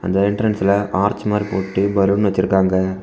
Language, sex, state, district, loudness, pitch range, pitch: Tamil, male, Tamil Nadu, Kanyakumari, -18 LUFS, 95-100 Hz, 100 Hz